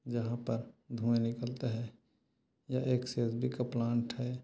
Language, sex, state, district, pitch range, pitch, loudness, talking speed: Hindi, male, Chhattisgarh, Korba, 115-125 Hz, 120 Hz, -35 LUFS, 120 wpm